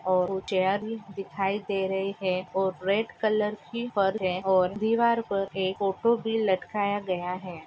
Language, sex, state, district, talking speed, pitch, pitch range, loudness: Hindi, female, Maharashtra, Nagpur, 170 wpm, 195 Hz, 185-215 Hz, -27 LUFS